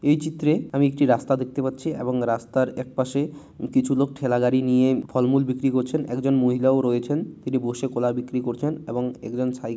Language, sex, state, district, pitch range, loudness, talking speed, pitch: Bengali, male, West Bengal, Malda, 125-140 Hz, -23 LUFS, 185 wpm, 130 Hz